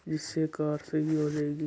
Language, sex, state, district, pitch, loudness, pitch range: Marwari, male, Rajasthan, Churu, 155 Hz, -31 LUFS, 150-155 Hz